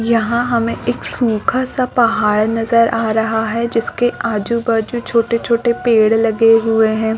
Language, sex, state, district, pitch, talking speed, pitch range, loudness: Hindi, female, Chhattisgarh, Balrampur, 230 Hz, 165 wpm, 225-235 Hz, -15 LUFS